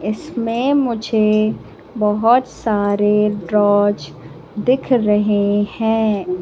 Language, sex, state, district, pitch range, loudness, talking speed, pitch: Hindi, female, Madhya Pradesh, Katni, 205-230 Hz, -17 LUFS, 75 wpm, 210 Hz